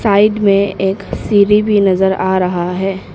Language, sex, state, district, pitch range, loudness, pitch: Hindi, female, Arunachal Pradesh, Papum Pare, 190-205 Hz, -13 LUFS, 195 Hz